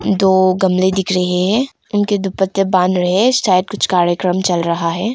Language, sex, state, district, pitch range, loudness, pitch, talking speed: Hindi, female, Arunachal Pradesh, Longding, 180-195 Hz, -15 LUFS, 185 Hz, 175 wpm